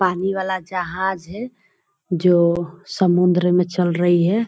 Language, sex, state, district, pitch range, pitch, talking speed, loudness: Hindi, female, Bihar, Purnia, 175-190 Hz, 180 Hz, 135 wpm, -19 LUFS